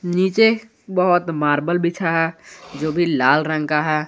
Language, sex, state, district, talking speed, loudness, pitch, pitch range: Hindi, male, Jharkhand, Garhwa, 160 wpm, -19 LUFS, 165 Hz, 155-180 Hz